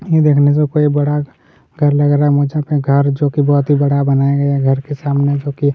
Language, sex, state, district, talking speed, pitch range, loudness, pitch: Hindi, male, Chhattisgarh, Kabirdham, 270 wpm, 140-145 Hz, -14 LUFS, 145 Hz